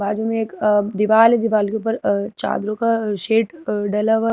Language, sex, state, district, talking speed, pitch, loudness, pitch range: Hindi, female, Madhya Pradesh, Bhopal, 180 wpm, 220 Hz, -19 LUFS, 210-225 Hz